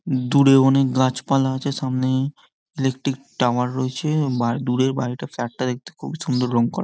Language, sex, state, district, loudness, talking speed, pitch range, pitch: Bengali, male, West Bengal, Jhargram, -21 LUFS, 150 wpm, 125-135 Hz, 130 Hz